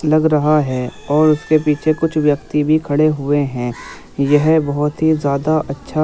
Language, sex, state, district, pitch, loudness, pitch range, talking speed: Hindi, male, Uttar Pradesh, Muzaffarnagar, 150 Hz, -16 LUFS, 145-155 Hz, 180 wpm